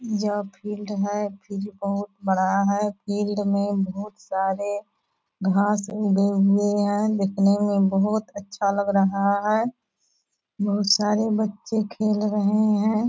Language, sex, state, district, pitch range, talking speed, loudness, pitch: Hindi, female, Bihar, Purnia, 200-210 Hz, 140 wpm, -23 LUFS, 205 Hz